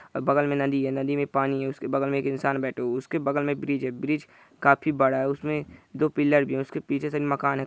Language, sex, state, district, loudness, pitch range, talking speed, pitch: Hindi, male, Bihar, Saran, -26 LUFS, 135-145 Hz, 275 wpm, 140 Hz